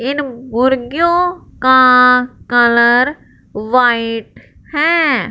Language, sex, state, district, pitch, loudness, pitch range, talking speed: Hindi, male, Punjab, Fazilka, 255 Hz, -12 LUFS, 240-290 Hz, 70 wpm